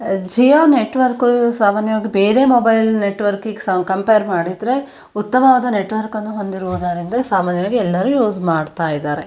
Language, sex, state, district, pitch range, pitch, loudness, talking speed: Kannada, female, Karnataka, Shimoga, 185-245 Hz, 215 Hz, -16 LUFS, 115 wpm